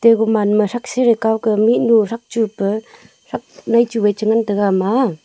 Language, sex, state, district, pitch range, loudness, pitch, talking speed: Wancho, female, Arunachal Pradesh, Longding, 210-235 Hz, -16 LUFS, 220 Hz, 205 wpm